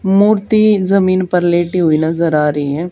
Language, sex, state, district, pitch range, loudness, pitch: Hindi, female, Haryana, Charkhi Dadri, 160-195 Hz, -13 LUFS, 180 Hz